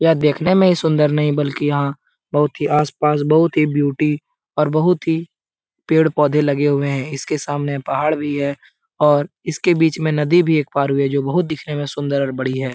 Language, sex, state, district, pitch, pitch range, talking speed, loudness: Hindi, male, Bihar, Saran, 150 Hz, 140-155 Hz, 215 wpm, -18 LUFS